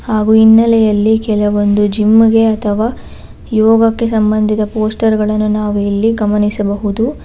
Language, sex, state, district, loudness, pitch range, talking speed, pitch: Kannada, female, Karnataka, Bangalore, -12 LUFS, 210-225 Hz, 105 wpm, 215 Hz